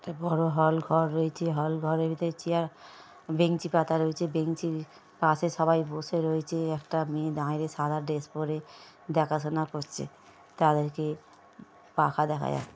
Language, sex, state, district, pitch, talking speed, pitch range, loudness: Bengali, male, West Bengal, Paschim Medinipur, 160 Hz, 125 wpm, 155-165 Hz, -29 LUFS